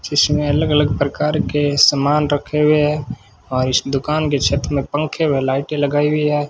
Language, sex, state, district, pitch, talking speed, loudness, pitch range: Hindi, male, Rajasthan, Bikaner, 145 Hz, 195 wpm, -17 LUFS, 140-150 Hz